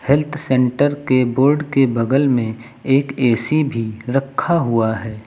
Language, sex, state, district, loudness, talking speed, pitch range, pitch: Hindi, male, Uttar Pradesh, Lucknow, -17 LUFS, 150 wpm, 115-140 Hz, 130 Hz